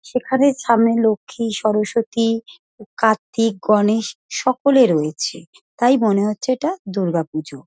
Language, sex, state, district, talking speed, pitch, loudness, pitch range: Bengali, female, West Bengal, North 24 Parganas, 100 wpm, 225 Hz, -18 LUFS, 210-255 Hz